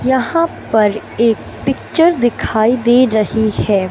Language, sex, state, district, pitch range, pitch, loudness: Hindi, male, Madhya Pradesh, Katni, 215-255 Hz, 230 Hz, -14 LUFS